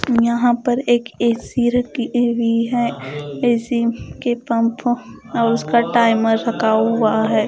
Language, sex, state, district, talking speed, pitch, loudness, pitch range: Hindi, female, Punjab, Fazilka, 130 wpm, 235 Hz, -18 LUFS, 230-240 Hz